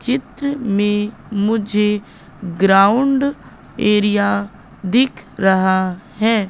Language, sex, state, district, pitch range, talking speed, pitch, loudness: Hindi, female, Madhya Pradesh, Katni, 195-235 Hz, 75 wpm, 210 Hz, -17 LUFS